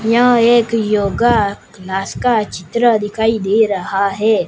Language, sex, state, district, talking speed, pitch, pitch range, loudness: Hindi, male, Gujarat, Gandhinagar, 135 wpm, 220 Hz, 200-235 Hz, -15 LUFS